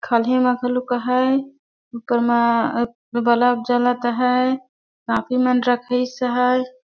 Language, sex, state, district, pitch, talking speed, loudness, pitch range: Surgujia, female, Chhattisgarh, Sarguja, 250 Hz, 115 wpm, -19 LUFS, 240-255 Hz